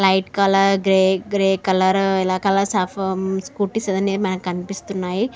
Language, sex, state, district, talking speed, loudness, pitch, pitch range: Telugu, female, Andhra Pradesh, Srikakulam, 90 wpm, -19 LUFS, 195 Hz, 190-195 Hz